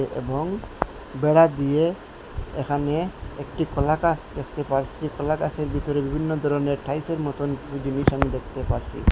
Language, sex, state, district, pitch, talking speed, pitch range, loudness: Bengali, male, Assam, Hailakandi, 145 Hz, 145 wpm, 140-155 Hz, -25 LUFS